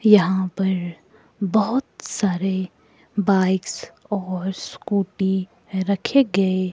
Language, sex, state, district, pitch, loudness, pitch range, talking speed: Hindi, female, Himachal Pradesh, Shimla, 195 Hz, -22 LUFS, 185-210 Hz, 80 wpm